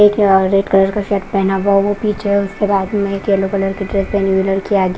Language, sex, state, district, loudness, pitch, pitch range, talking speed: Hindi, female, Punjab, Kapurthala, -15 LUFS, 195 Hz, 195-205 Hz, 240 wpm